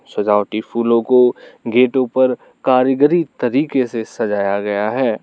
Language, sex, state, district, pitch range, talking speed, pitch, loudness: Hindi, male, Arunachal Pradesh, Lower Dibang Valley, 110-130 Hz, 125 wpm, 125 Hz, -16 LUFS